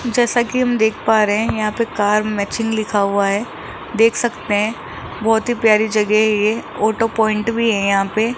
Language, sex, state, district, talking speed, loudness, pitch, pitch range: Hindi, male, Rajasthan, Jaipur, 210 wpm, -17 LUFS, 220 Hz, 210-230 Hz